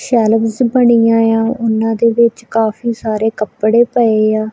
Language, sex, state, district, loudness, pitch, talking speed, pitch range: Punjabi, female, Punjab, Kapurthala, -13 LUFS, 225 Hz, 145 wpm, 220-235 Hz